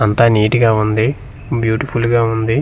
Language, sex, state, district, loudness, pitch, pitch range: Telugu, male, Andhra Pradesh, Manyam, -15 LUFS, 115 Hz, 110-120 Hz